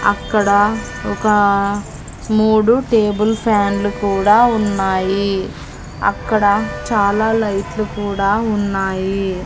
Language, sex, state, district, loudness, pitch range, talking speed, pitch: Telugu, female, Andhra Pradesh, Annamaya, -16 LUFS, 200-215 Hz, 75 wpm, 205 Hz